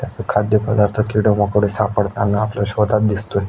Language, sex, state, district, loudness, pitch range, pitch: Marathi, male, Maharashtra, Aurangabad, -17 LUFS, 100-105 Hz, 105 Hz